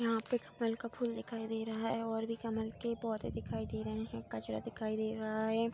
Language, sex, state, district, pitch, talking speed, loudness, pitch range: Hindi, female, Bihar, Saharsa, 225 Hz, 240 wpm, -38 LUFS, 190-230 Hz